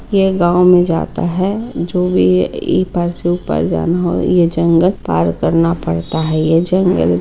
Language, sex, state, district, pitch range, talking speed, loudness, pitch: Hindi, female, Bihar, Muzaffarpur, 155-180 Hz, 165 wpm, -14 LUFS, 170 Hz